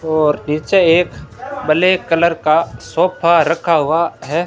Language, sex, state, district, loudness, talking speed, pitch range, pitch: Hindi, male, Rajasthan, Bikaner, -15 LUFS, 135 wpm, 155-175 Hz, 165 Hz